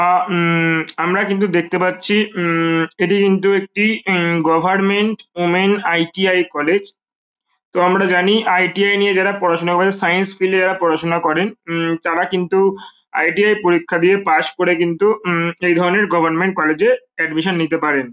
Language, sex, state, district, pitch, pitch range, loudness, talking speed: Bengali, female, West Bengal, Kolkata, 180 Hz, 170-195 Hz, -16 LUFS, 170 wpm